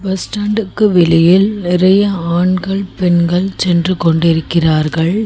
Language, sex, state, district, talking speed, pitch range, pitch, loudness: Tamil, female, Tamil Nadu, Chennai, 105 wpm, 170-195 Hz, 180 Hz, -13 LUFS